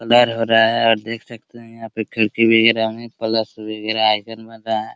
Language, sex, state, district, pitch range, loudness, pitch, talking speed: Hindi, male, Bihar, Araria, 110-115 Hz, -17 LUFS, 115 Hz, 240 wpm